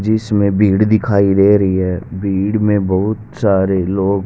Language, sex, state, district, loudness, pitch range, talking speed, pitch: Hindi, male, Haryana, Rohtak, -14 LUFS, 95-105 Hz, 155 wpm, 100 Hz